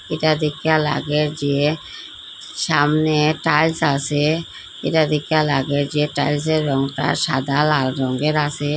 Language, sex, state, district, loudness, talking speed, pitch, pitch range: Bengali, female, Assam, Hailakandi, -19 LUFS, 115 wpm, 150 Hz, 145-155 Hz